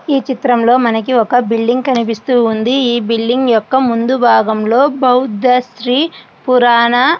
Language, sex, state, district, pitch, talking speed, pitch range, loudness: Telugu, female, Andhra Pradesh, Guntur, 245 Hz, 135 wpm, 230-255 Hz, -12 LUFS